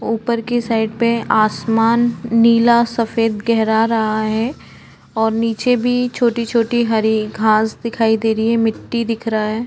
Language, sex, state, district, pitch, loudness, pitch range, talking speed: Hindi, female, Uttarakhand, Tehri Garhwal, 230 Hz, -16 LUFS, 220-235 Hz, 150 wpm